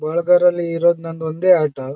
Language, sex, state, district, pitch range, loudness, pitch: Kannada, male, Karnataka, Shimoga, 155-175 Hz, -17 LUFS, 170 Hz